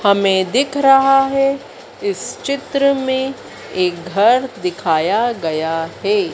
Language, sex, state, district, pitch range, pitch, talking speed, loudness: Hindi, female, Madhya Pradesh, Dhar, 185-275 Hz, 260 Hz, 115 wpm, -16 LUFS